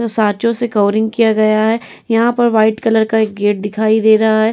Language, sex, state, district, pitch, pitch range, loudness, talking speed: Hindi, female, Bihar, Vaishali, 220 Hz, 215-230 Hz, -14 LUFS, 240 wpm